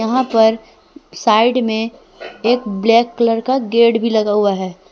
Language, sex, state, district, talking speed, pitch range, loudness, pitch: Hindi, female, Jharkhand, Palamu, 160 wpm, 220-240 Hz, -15 LUFS, 230 Hz